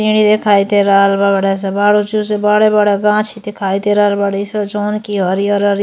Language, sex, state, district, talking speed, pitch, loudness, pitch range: Bhojpuri, female, Uttar Pradesh, Gorakhpur, 195 wpm, 205 Hz, -13 LUFS, 200-210 Hz